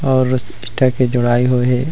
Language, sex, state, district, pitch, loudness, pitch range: Chhattisgarhi, male, Chhattisgarh, Rajnandgaon, 125 Hz, -16 LUFS, 120-130 Hz